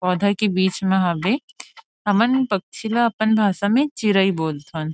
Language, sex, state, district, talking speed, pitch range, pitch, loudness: Chhattisgarhi, female, Chhattisgarh, Rajnandgaon, 160 wpm, 185-235 Hz, 205 Hz, -20 LUFS